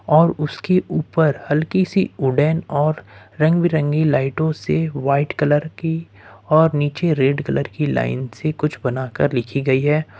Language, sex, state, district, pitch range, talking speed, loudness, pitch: Hindi, male, Jharkhand, Ranchi, 140-160 Hz, 155 wpm, -19 LUFS, 150 Hz